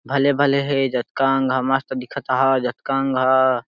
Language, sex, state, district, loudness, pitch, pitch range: Sadri, male, Chhattisgarh, Jashpur, -20 LUFS, 135 Hz, 130-140 Hz